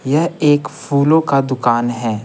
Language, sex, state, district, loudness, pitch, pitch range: Hindi, male, Bihar, Patna, -15 LUFS, 140 Hz, 120-150 Hz